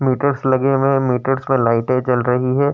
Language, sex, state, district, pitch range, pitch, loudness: Hindi, male, Uttar Pradesh, Jyotiba Phule Nagar, 125-135 Hz, 130 Hz, -17 LUFS